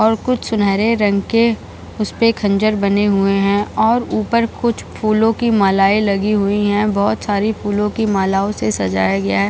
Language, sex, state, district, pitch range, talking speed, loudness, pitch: Hindi, female, Bihar, Jahanabad, 200-220 Hz, 175 wpm, -16 LUFS, 205 Hz